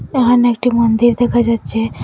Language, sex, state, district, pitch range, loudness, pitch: Bengali, female, Assam, Hailakandi, 225-245 Hz, -14 LUFS, 240 Hz